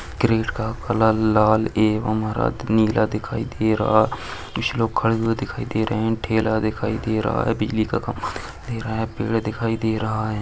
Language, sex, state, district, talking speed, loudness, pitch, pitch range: Hindi, male, Uttar Pradesh, Varanasi, 205 wpm, -22 LUFS, 110 Hz, 110-115 Hz